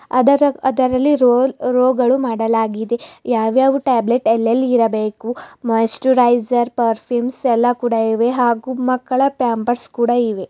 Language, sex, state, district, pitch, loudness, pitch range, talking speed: Kannada, female, Karnataka, Bidar, 245 Hz, -16 LUFS, 230-255 Hz, 120 wpm